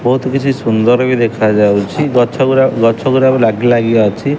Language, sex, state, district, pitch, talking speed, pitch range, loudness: Odia, male, Odisha, Khordha, 120 Hz, 175 wpm, 115-130 Hz, -12 LUFS